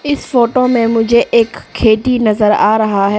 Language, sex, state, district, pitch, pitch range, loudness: Hindi, female, Arunachal Pradesh, Papum Pare, 230 Hz, 215-250 Hz, -12 LUFS